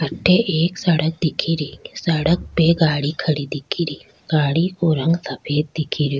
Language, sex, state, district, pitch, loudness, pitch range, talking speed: Rajasthani, female, Rajasthan, Churu, 160 Hz, -20 LUFS, 150-170 Hz, 165 wpm